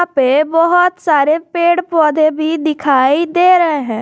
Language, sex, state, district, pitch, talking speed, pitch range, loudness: Hindi, female, Jharkhand, Garhwa, 315 Hz, 165 wpm, 295-345 Hz, -13 LUFS